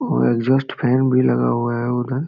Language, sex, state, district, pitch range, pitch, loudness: Hindi, male, Jharkhand, Sahebganj, 115-130 Hz, 125 Hz, -18 LUFS